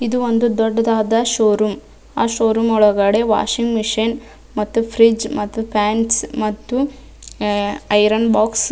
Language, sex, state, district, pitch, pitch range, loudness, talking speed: Kannada, female, Karnataka, Dharwad, 225 Hz, 215-230 Hz, -17 LUFS, 115 wpm